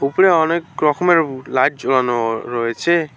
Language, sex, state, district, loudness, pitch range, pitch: Bengali, male, West Bengal, Alipurduar, -17 LUFS, 125-170 Hz, 150 Hz